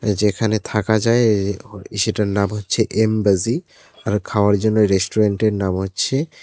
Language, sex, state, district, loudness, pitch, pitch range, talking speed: Bengali, male, West Bengal, Cooch Behar, -19 LUFS, 105 Hz, 100-110 Hz, 140 wpm